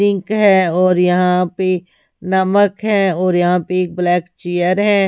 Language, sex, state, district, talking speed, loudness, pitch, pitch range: Hindi, female, Haryana, Rohtak, 165 wpm, -15 LUFS, 185 Hz, 180-195 Hz